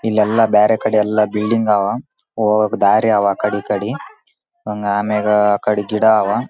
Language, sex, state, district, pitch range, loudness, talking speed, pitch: Kannada, male, Karnataka, Raichur, 105-110 Hz, -16 LUFS, 260 wpm, 105 Hz